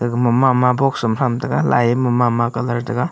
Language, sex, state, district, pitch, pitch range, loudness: Wancho, male, Arunachal Pradesh, Longding, 120 Hz, 120-125 Hz, -17 LUFS